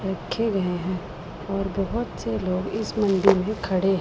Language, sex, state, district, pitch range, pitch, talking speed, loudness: Hindi, female, Punjab, Pathankot, 185-200 Hz, 195 Hz, 180 wpm, -25 LUFS